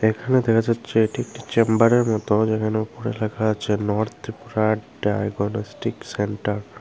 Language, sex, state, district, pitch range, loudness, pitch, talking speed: Bengali, female, Tripura, Unakoti, 105-115 Hz, -22 LUFS, 110 Hz, 140 wpm